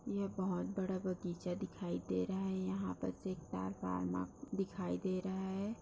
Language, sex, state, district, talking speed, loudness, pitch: Hindi, female, Bihar, Darbhanga, 145 wpm, -41 LUFS, 180 Hz